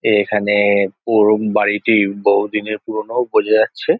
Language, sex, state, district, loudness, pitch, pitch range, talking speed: Bengali, male, West Bengal, Jhargram, -16 LUFS, 105 Hz, 105-110 Hz, 105 wpm